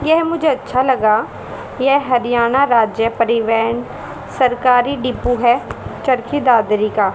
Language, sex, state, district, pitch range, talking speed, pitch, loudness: Hindi, female, Haryana, Charkhi Dadri, 230-265 Hz, 120 wpm, 245 Hz, -16 LUFS